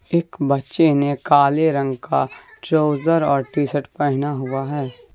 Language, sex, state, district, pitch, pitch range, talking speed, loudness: Hindi, male, Jharkhand, Deoghar, 145 Hz, 140-160 Hz, 150 wpm, -19 LUFS